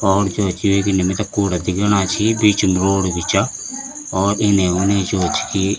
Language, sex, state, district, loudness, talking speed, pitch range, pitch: Garhwali, male, Uttarakhand, Tehri Garhwal, -17 LUFS, 205 wpm, 95-105 Hz, 100 Hz